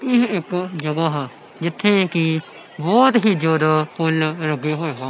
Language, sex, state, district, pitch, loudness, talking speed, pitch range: Punjabi, male, Punjab, Kapurthala, 160 Hz, -19 LUFS, 155 wpm, 155-190 Hz